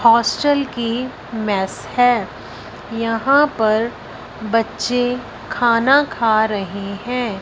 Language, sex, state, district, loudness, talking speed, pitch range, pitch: Hindi, female, Punjab, Fazilka, -18 LUFS, 80 wpm, 215-245 Hz, 230 Hz